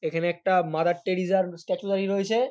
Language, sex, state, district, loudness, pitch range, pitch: Bengali, male, West Bengal, North 24 Parganas, -26 LUFS, 175-195 Hz, 185 Hz